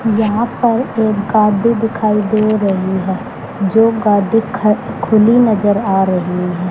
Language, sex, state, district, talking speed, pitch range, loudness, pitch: Hindi, male, Haryana, Charkhi Dadri, 145 wpm, 195-225 Hz, -14 LUFS, 215 Hz